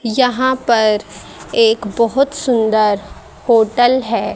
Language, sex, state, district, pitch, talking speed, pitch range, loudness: Hindi, female, Haryana, Rohtak, 230 Hz, 95 wpm, 220-250 Hz, -15 LUFS